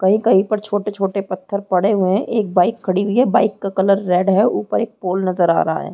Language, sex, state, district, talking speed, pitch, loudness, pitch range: Hindi, female, Chhattisgarh, Rajnandgaon, 230 wpm, 195 Hz, -17 LUFS, 185-210 Hz